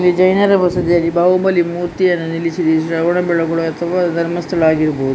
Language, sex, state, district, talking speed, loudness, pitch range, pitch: Kannada, female, Karnataka, Dakshina Kannada, 140 wpm, -15 LUFS, 165-180 Hz, 170 Hz